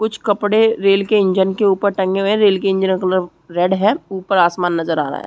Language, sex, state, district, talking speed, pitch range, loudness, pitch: Hindi, female, Chhattisgarh, Sarguja, 260 wpm, 185-205 Hz, -16 LUFS, 195 Hz